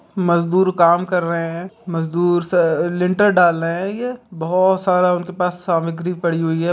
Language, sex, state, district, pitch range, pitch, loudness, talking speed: Hindi, male, Bihar, Begusarai, 170-185 Hz, 175 Hz, -18 LUFS, 170 wpm